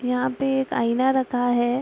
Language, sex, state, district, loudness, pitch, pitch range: Hindi, female, Bihar, Araria, -22 LUFS, 250 Hz, 245-265 Hz